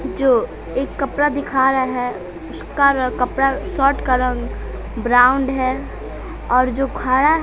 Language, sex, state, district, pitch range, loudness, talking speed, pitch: Hindi, female, Bihar, West Champaran, 250-275 Hz, -18 LUFS, 145 wpm, 260 Hz